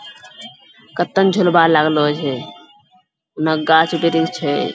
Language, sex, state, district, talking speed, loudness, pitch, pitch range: Angika, female, Bihar, Bhagalpur, 90 wpm, -16 LUFS, 165 Hz, 155-180 Hz